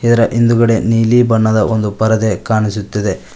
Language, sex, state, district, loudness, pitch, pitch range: Kannada, male, Karnataka, Koppal, -13 LUFS, 110 Hz, 105-115 Hz